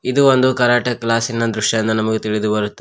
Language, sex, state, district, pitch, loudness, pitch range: Kannada, male, Karnataka, Koppal, 115 Hz, -17 LUFS, 110-125 Hz